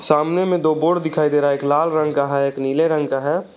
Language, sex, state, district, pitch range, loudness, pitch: Hindi, male, Jharkhand, Garhwa, 140-160 Hz, -18 LUFS, 150 Hz